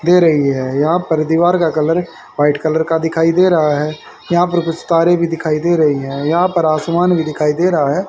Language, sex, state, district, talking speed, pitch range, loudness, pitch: Hindi, male, Haryana, Charkhi Dadri, 235 wpm, 155-175 Hz, -14 LUFS, 165 Hz